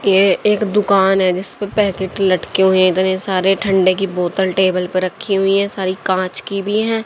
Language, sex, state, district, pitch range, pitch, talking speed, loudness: Hindi, female, Haryana, Charkhi Dadri, 185-200 Hz, 190 Hz, 205 wpm, -16 LUFS